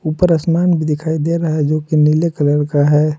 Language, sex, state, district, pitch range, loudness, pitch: Hindi, male, Jharkhand, Palamu, 150-165 Hz, -15 LUFS, 155 Hz